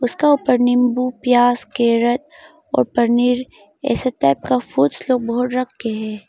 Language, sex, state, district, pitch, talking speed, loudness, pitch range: Hindi, female, Arunachal Pradesh, Longding, 245 Hz, 160 wpm, -18 LUFS, 235-255 Hz